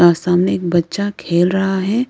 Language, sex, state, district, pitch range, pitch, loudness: Hindi, female, Arunachal Pradesh, Lower Dibang Valley, 175-195 Hz, 180 Hz, -16 LUFS